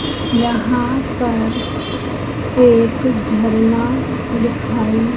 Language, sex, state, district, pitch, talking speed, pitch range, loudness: Hindi, female, Madhya Pradesh, Katni, 235 Hz, 60 wpm, 225-245 Hz, -16 LUFS